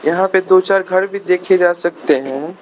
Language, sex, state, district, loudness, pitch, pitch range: Hindi, male, Arunachal Pradesh, Lower Dibang Valley, -15 LUFS, 185 Hz, 175-190 Hz